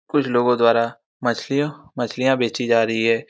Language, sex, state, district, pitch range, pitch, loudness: Hindi, male, Bihar, Saran, 115-135 Hz, 120 Hz, -20 LUFS